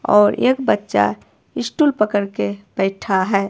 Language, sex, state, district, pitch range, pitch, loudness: Hindi, female, Himachal Pradesh, Shimla, 190-210 Hz, 200 Hz, -18 LUFS